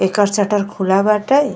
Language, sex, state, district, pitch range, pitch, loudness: Bhojpuri, female, Uttar Pradesh, Ghazipur, 195-210 Hz, 205 Hz, -16 LUFS